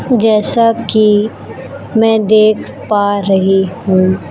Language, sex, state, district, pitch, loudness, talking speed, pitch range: Hindi, female, Chhattisgarh, Raipur, 215 Hz, -12 LUFS, 95 wpm, 195-220 Hz